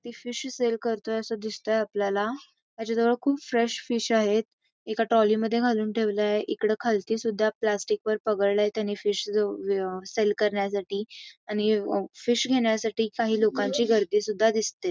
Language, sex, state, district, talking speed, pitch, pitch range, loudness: Marathi, female, Karnataka, Belgaum, 130 wpm, 220 Hz, 210-230 Hz, -26 LUFS